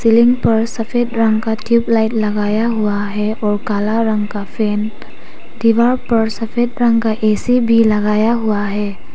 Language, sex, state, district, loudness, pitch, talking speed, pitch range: Hindi, female, Arunachal Pradesh, Papum Pare, -16 LUFS, 220 Hz, 165 wpm, 210-230 Hz